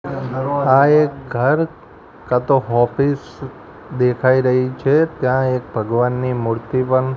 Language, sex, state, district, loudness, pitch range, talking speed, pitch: Gujarati, male, Gujarat, Gandhinagar, -17 LUFS, 125-140 Hz, 110 wpm, 130 Hz